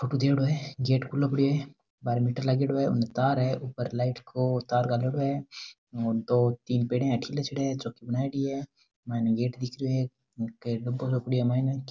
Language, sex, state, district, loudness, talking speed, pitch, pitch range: Rajasthani, male, Rajasthan, Nagaur, -28 LUFS, 180 wpm, 130 Hz, 120-135 Hz